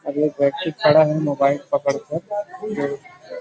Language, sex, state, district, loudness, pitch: Hindi, male, Chhattisgarh, Rajnandgaon, -20 LUFS, 155 Hz